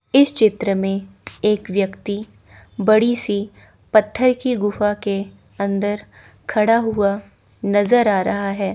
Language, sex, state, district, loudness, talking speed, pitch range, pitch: Hindi, female, Chandigarh, Chandigarh, -19 LUFS, 125 wpm, 200-220 Hz, 205 Hz